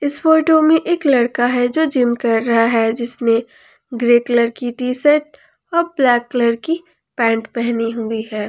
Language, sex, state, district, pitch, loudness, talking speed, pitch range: Hindi, female, Jharkhand, Ranchi, 245 Hz, -16 LUFS, 175 wpm, 230-295 Hz